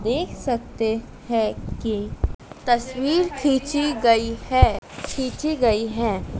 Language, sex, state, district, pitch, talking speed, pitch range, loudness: Hindi, female, Madhya Pradesh, Dhar, 240 Hz, 105 wpm, 225-280 Hz, -23 LUFS